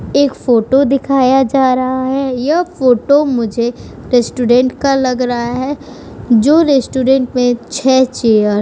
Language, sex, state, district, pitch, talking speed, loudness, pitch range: Hindi, female, Uttar Pradesh, Budaun, 260 Hz, 140 wpm, -13 LUFS, 245-275 Hz